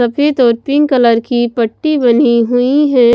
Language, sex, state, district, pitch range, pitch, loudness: Hindi, female, Himachal Pradesh, Shimla, 235-280 Hz, 245 Hz, -12 LUFS